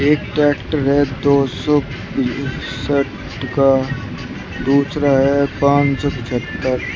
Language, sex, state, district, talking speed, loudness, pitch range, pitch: Hindi, male, Uttar Pradesh, Shamli, 110 wpm, -17 LUFS, 130-145 Hz, 140 Hz